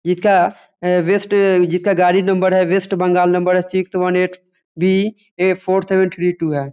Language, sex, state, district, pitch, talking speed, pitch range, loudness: Hindi, male, Bihar, Muzaffarpur, 185 Hz, 185 wpm, 180-190 Hz, -16 LUFS